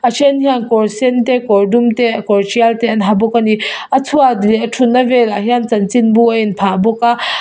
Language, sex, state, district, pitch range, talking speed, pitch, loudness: Mizo, female, Mizoram, Aizawl, 220-250 Hz, 235 wpm, 235 Hz, -12 LUFS